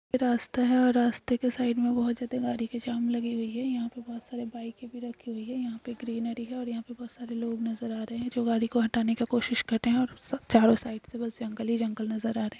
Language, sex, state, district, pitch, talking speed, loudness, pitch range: Hindi, female, Chhattisgarh, Bastar, 235 Hz, 275 wpm, -29 LUFS, 230-245 Hz